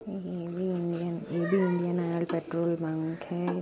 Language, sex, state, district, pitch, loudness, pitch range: Hindi, female, Chhattisgarh, Bastar, 175 Hz, -31 LUFS, 170-180 Hz